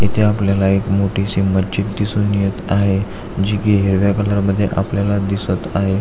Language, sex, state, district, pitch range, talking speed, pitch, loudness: Marathi, male, Maharashtra, Aurangabad, 95-100 Hz, 170 wpm, 100 Hz, -17 LUFS